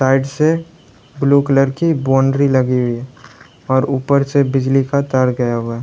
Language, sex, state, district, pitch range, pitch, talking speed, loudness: Hindi, male, Uttar Pradesh, Lalitpur, 130-140 Hz, 135 Hz, 175 wpm, -15 LUFS